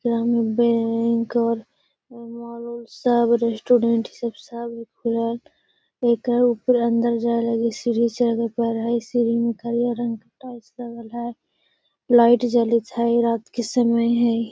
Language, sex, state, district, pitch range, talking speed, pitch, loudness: Magahi, female, Bihar, Gaya, 230-240 Hz, 115 wpm, 235 Hz, -21 LUFS